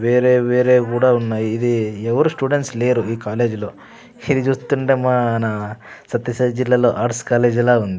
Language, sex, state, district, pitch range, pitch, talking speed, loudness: Telugu, male, Andhra Pradesh, Sri Satya Sai, 115-125 Hz, 120 Hz, 160 wpm, -18 LUFS